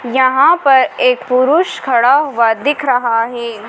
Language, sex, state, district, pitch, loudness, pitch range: Hindi, female, Madhya Pradesh, Dhar, 255 Hz, -12 LUFS, 235-285 Hz